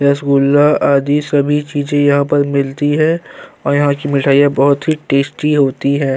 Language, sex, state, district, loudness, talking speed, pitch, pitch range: Hindi, male, Uttar Pradesh, Jyotiba Phule Nagar, -13 LUFS, 165 wpm, 145 Hz, 140-145 Hz